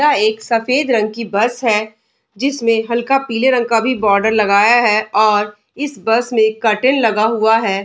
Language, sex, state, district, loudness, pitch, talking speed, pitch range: Hindi, female, Bihar, Darbhanga, -15 LUFS, 225 Hz, 185 wpm, 215-245 Hz